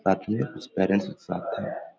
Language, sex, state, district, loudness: Hindi, male, Bihar, Darbhanga, -28 LUFS